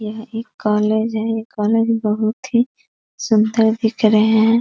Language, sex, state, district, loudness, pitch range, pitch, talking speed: Hindi, female, Bihar, East Champaran, -17 LUFS, 215-225 Hz, 220 Hz, 145 wpm